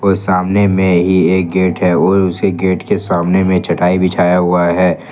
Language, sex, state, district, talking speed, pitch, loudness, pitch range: Hindi, male, Jharkhand, Ranchi, 190 wpm, 90 Hz, -13 LUFS, 90-95 Hz